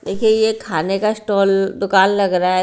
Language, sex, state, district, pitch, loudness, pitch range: Hindi, female, Bihar, Patna, 195 Hz, -16 LUFS, 190-215 Hz